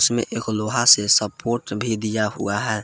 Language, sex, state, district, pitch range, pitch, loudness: Hindi, male, Jharkhand, Palamu, 105-120 Hz, 110 Hz, -20 LUFS